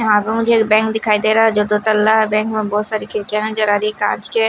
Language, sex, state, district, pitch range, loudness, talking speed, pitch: Hindi, female, Himachal Pradesh, Shimla, 210-220 Hz, -15 LUFS, 270 wpm, 215 Hz